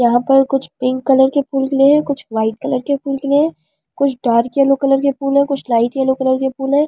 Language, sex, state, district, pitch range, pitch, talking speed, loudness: Hindi, female, Delhi, New Delhi, 260-280 Hz, 270 Hz, 260 wpm, -15 LUFS